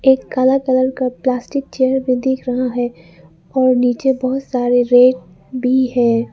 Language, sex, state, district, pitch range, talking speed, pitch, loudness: Hindi, female, Arunachal Pradesh, Lower Dibang Valley, 245-260 Hz, 160 wpm, 255 Hz, -16 LUFS